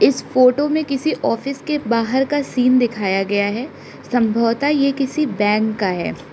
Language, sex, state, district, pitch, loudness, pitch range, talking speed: Hindi, female, Arunachal Pradesh, Lower Dibang Valley, 250 Hz, -18 LUFS, 220-280 Hz, 170 wpm